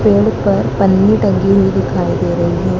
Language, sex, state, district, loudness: Hindi, female, Madhya Pradesh, Dhar, -13 LUFS